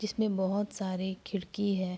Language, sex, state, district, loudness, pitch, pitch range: Hindi, female, Bihar, Araria, -33 LUFS, 195 Hz, 190-205 Hz